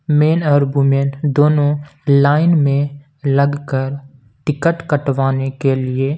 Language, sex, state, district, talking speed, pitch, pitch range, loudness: Hindi, male, Punjab, Kapurthala, 105 wpm, 140 Hz, 135-150 Hz, -16 LUFS